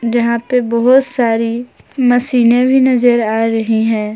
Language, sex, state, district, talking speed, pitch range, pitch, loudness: Hindi, female, Jharkhand, Palamu, 145 wpm, 225-250 Hz, 240 Hz, -13 LUFS